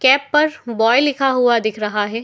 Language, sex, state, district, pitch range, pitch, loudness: Hindi, female, Uttar Pradesh, Muzaffarnagar, 225-280 Hz, 245 Hz, -16 LUFS